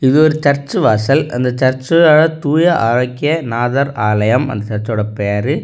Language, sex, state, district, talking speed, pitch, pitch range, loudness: Tamil, male, Tamil Nadu, Kanyakumari, 140 wpm, 130 Hz, 110-150 Hz, -14 LUFS